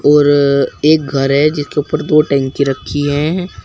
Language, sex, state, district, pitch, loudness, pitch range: Hindi, male, Uttar Pradesh, Shamli, 145 Hz, -13 LUFS, 140-150 Hz